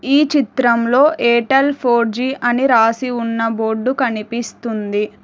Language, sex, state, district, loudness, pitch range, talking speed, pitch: Telugu, female, Telangana, Hyderabad, -16 LUFS, 230-265 Hz, 115 wpm, 240 Hz